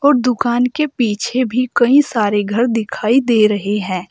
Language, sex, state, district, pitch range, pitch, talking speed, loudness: Hindi, female, Uttar Pradesh, Saharanpur, 210-250 Hz, 240 Hz, 175 wpm, -15 LUFS